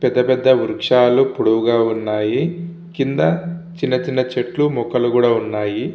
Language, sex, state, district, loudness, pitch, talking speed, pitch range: Telugu, male, Andhra Pradesh, Visakhapatnam, -17 LUFS, 125 Hz, 120 wpm, 120-140 Hz